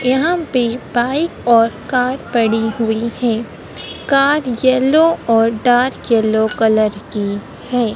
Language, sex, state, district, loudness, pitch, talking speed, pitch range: Hindi, female, Madhya Pradesh, Dhar, -15 LUFS, 235 Hz, 120 wpm, 225-255 Hz